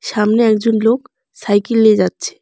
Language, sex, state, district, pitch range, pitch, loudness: Bengali, female, West Bengal, Alipurduar, 210-235 Hz, 225 Hz, -14 LUFS